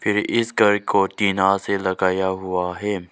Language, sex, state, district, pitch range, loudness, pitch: Hindi, male, Arunachal Pradesh, Lower Dibang Valley, 95-105 Hz, -20 LUFS, 100 Hz